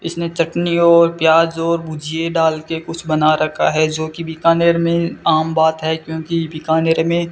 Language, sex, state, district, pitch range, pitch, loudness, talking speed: Hindi, male, Rajasthan, Bikaner, 160-170 Hz, 165 Hz, -16 LUFS, 180 wpm